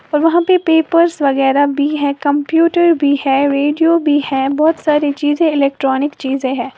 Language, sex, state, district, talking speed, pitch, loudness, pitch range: Hindi, female, Uttar Pradesh, Lalitpur, 170 wpm, 290 Hz, -14 LUFS, 275-320 Hz